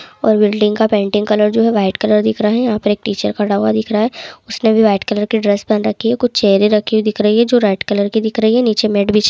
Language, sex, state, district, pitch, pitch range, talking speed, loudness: Hindi, male, West Bengal, Kolkata, 215 Hz, 210-220 Hz, 295 wpm, -14 LUFS